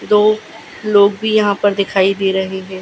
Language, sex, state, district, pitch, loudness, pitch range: Hindi, female, Gujarat, Gandhinagar, 200 Hz, -15 LUFS, 190-210 Hz